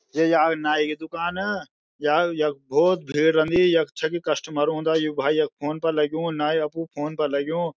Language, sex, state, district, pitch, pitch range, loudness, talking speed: Garhwali, male, Uttarakhand, Uttarkashi, 155 Hz, 150-165 Hz, -23 LUFS, 195 wpm